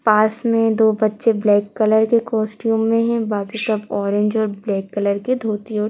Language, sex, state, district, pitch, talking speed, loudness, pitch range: Hindi, female, Madhya Pradesh, Bhopal, 215 Hz, 185 wpm, -18 LUFS, 210-225 Hz